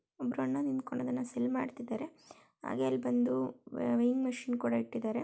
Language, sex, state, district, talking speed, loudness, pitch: Kannada, female, Karnataka, Shimoga, 160 wpm, -34 LUFS, 245 Hz